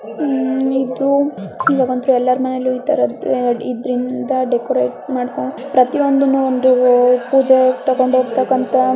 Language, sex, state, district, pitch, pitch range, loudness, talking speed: Kannada, female, Karnataka, Mysore, 255 Hz, 250-265 Hz, -16 LUFS, 55 wpm